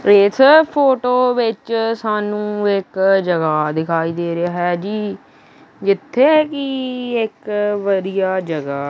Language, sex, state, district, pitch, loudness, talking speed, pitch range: Punjabi, male, Punjab, Kapurthala, 205 Hz, -17 LUFS, 115 wpm, 185-245 Hz